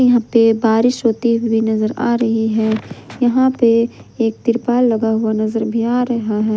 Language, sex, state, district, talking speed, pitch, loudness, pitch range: Hindi, female, Jharkhand, Ranchi, 175 wpm, 230 Hz, -16 LUFS, 220-240 Hz